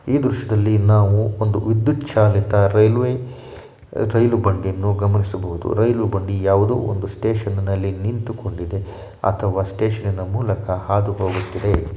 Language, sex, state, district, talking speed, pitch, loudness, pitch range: Kannada, male, Karnataka, Shimoga, 115 wpm, 100 Hz, -19 LUFS, 100-110 Hz